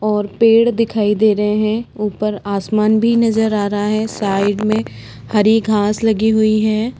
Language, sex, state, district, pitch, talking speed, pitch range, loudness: Hindi, female, Uttar Pradesh, Budaun, 215 Hz, 180 wpm, 210-220 Hz, -15 LUFS